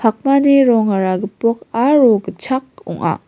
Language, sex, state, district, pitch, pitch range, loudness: Garo, female, Meghalaya, West Garo Hills, 235 Hz, 210-270 Hz, -15 LUFS